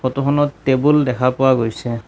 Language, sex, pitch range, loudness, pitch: Assamese, male, 125-145 Hz, -17 LUFS, 130 Hz